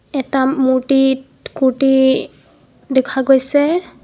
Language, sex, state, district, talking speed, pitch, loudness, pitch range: Assamese, female, Assam, Kamrup Metropolitan, 75 wpm, 265 Hz, -15 LUFS, 265-275 Hz